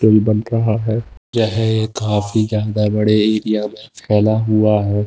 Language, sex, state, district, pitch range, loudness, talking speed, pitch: Hindi, male, Bihar, Katihar, 105-110 Hz, -17 LUFS, 120 wpm, 110 Hz